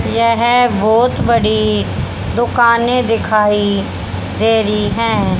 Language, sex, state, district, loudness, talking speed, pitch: Hindi, female, Haryana, Jhajjar, -14 LUFS, 90 wpm, 215 Hz